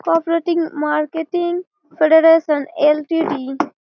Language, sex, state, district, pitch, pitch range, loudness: Bengali, female, West Bengal, Malda, 325 Hz, 300-335 Hz, -17 LUFS